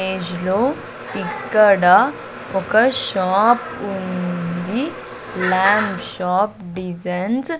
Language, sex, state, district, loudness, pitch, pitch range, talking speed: Telugu, female, Andhra Pradesh, Sri Satya Sai, -19 LUFS, 190 Hz, 180-210 Hz, 80 wpm